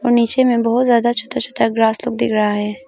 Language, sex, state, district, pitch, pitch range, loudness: Hindi, female, Arunachal Pradesh, Papum Pare, 235 Hz, 220-245 Hz, -16 LUFS